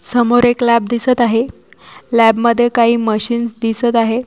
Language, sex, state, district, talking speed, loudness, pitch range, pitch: Marathi, female, Maharashtra, Washim, 155 wpm, -14 LUFS, 230-240 Hz, 235 Hz